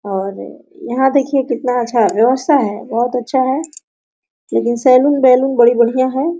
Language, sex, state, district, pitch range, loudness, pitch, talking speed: Hindi, female, Bihar, Araria, 235-270 Hz, -14 LUFS, 255 Hz, 150 wpm